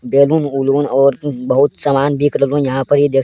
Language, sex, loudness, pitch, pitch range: Angika, male, -14 LUFS, 140 Hz, 135-145 Hz